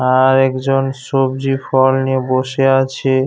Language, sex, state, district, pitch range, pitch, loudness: Bengali, male, West Bengal, Paschim Medinipur, 130-135 Hz, 135 Hz, -15 LUFS